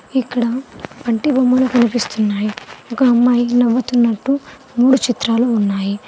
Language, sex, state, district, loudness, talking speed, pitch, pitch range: Telugu, female, Telangana, Mahabubabad, -16 LUFS, 100 wpm, 245 Hz, 230-255 Hz